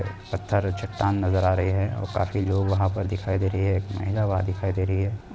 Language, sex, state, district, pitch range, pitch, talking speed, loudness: Hindi, male, Bihar, Jamui, 95-100 Hz, 95 Hz, 245 wpm, -25 LUFS